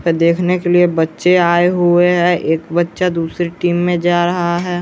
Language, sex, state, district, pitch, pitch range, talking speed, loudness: Hindi, male, Bihar, West Champaran, 175 Hz, 170-175 Hz, 185 wpm, -14 LUFS